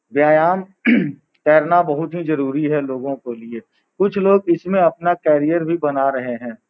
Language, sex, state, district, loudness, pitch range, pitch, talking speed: Hindi, male, Bihar, Gopalganj, -18 LUFS, 135-175 Hz, 155 Hz, 160 wpm